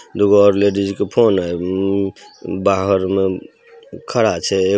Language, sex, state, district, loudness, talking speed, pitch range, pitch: Maithili, male, Bihar, Samastipur, -16 LUFS, 125 wpm, 95-100 Hz, 100 Hz